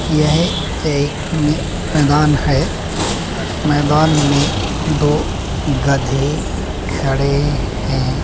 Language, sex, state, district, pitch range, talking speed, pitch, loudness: Hindi, male, Uttar Pradesh, Budaun, 140-150 Hz, 80 wpm, 145 Hz, -16 LUFS